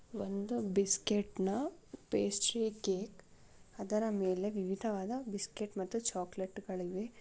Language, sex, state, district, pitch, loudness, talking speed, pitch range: Kannada, female, Karnataka, Shimoga, 200 Hz, -36 LUFS, 90 wpm, 190-220 Hz